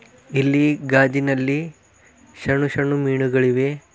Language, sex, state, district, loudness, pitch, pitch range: Kannada, male, Karnataka, Bidar, -19 LUFS, 135 Hz, 135-145 Hz